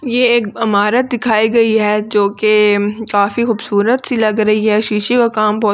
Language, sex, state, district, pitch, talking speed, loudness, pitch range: Hindi, female, Delhi, New Delhi, 215 Hz, 175 wpm, -13 LUFS, 210-235 Hz